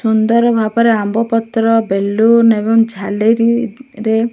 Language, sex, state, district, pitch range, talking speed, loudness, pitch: Odia, male, Odisha, Malkangiri, 220-230 Hz, 125 wpm, -13 LUFS, 225 Hz